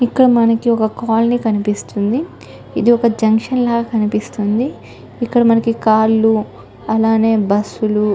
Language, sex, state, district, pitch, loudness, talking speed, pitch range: Telugu, female, Telangana, Nalgonda, 225 Hz, -15 LUFS, 110 wpm, 215-235 Hz